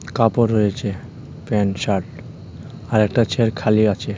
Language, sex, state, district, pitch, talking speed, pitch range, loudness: Bengali, male, Tripura, West Tripura, 110 Hz, 130 wpm, 100-120 Hz, -19 LUFS